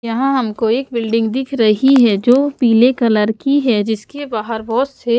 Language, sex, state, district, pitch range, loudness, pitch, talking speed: Hindi, female, Haryana, Jhajjar, 225-265 Hz, -15 LUFS, 235 Hz, 195 wpm